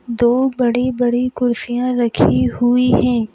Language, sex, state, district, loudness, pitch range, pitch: Hindi, female, Madhya Pradesh, Bhopal, -16 LUFS, 240-250 Hz, 245 Hz